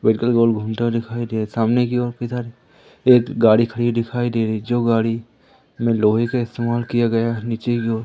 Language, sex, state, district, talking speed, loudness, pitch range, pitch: Hindi, male, Madhya Pradesh, Umaria, 210 wpm, -19 LUFS, 115-120 Hz, 115 Hz